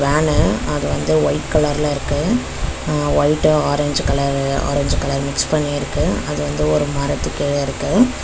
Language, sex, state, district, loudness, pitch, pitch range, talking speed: Tamil, female, Tamil Nadu, Chennai, -18 LUFS, 145 Hz, 140-150 Hz, 155 wpm